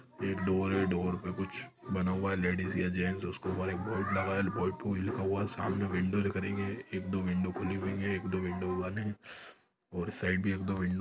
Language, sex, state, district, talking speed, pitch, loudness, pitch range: Hindi, male, Chhattisgarh, Sukma, 260 wpm, 95 Hz, -34 LUFS, 90-95 Hz